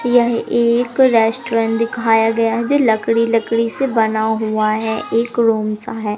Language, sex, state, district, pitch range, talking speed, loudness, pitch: Hindi, female, Madhya Pradesh, Umaria, 220-235 Hz, 165 wpm, -16 LUFS, 230 Hz